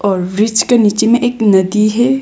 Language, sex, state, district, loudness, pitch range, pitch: Hindi, female, Arunachal Pradesh, Longding, -12 LUFS, 205-240 Hz, 215 Hz